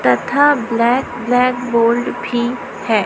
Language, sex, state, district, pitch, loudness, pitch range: Hindi, female, Chhattisgarh, Raipur, 240 Hz, -16 LUFS, 230-245 Hz